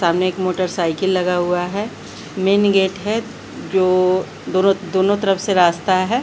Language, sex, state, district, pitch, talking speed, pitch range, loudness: Hindi, female, Bihar, Patna, 185 Hz, 145 wpm, 180-195 Hz, -18 LUFS